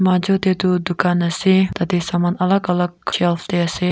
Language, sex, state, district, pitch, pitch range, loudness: Nagamese, female, Nagaland, Kohima, 180 Hz, 175-185 Hz, -18 LUFS